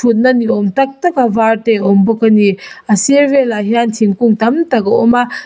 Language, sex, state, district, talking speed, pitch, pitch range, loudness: Mizo, female, Mizoram, Aizawl, 240 wpm, 235 Hz, 215-255 Hz, -12 LUFS